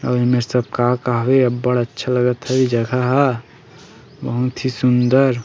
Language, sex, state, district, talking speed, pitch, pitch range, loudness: Chhattisgarhi, male, Chhattisgarh, Sukma, 155 wpm, 125 Hz, 120-130 Hz, -17 LUFS